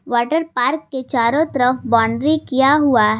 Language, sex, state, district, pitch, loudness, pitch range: Hindi, female, Jharkhand, Garhwa, 260 Hz, -17 LUFS, 235-300 Hz